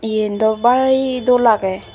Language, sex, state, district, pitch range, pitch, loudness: Chakma, female, Tripura, Dhalai, 215-250 Hz, 225 Hz, -15 LUFS